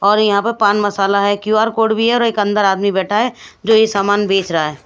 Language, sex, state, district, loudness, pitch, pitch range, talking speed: Hindi, female, Bihar, West Champaran, -15 LUFS, 205 Hz, 200-220 Hz, 270 wpm